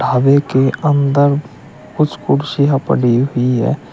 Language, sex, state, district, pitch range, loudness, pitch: Hindi, male, Uttar Pradesh, Shamli, 125-145 Hz, -14 LUFS, 140 Hz